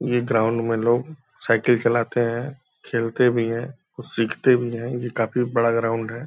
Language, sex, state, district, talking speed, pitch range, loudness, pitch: Hindi, male, Bihar, Purnia, 180 wpm, 115-125 Hz, -22 LUFS, 120 Hz